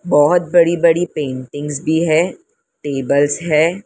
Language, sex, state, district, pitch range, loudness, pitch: Hindi, female, Maharashtra, Mumbai Suburban, 145-175 Hz, -16 LUFS, 160 Hz